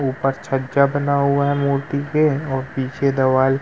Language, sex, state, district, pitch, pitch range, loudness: Hindi, male, Uttar Pradesh, Muzaffarnagar, 140 Hz, 135-140 Hz, -19 LUFS